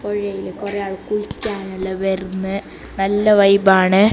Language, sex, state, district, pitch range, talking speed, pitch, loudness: Malayalam, female, Kerala, Kasaragod, 190-205 Hz, 115 wpm, 195 Hz, -18 LUFS